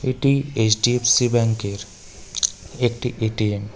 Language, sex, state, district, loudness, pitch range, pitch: Bengali, male, West Bengal, Darjeeling, -20 LUFS, 105-125 Hz, 110 Hz